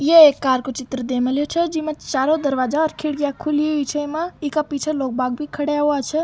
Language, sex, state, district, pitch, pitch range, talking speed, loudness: Rajasthani, female, Rajasthan, Nagaur, 295 Hz, 265-310 Hz, 240 wpm, -20 LUFS